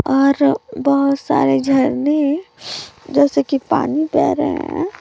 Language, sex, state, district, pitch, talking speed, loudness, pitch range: Hindi, female, Chhattisgarh, Raipur, 280 Hz, 120 wpm, -17 LUFS, 265-310 Hz